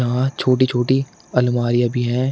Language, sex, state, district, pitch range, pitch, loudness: Hindi, male, Uttar Pradesh, Shamli, 120-130 Hz, 125 Hz, -19 LUFS